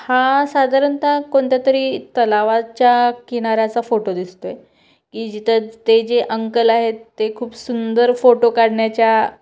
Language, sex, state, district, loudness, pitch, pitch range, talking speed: Marathi, female, Maharashtra, Chandrapur, -16 LUFS, 235 Hz, 225-255 Hz, 120 wpm